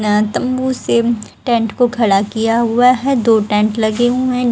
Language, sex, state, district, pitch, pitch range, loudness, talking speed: Hindi, female, Haryana, Jhajjar, 235 Hz, 220-250 Hz, -15 LUFS, 160 wpm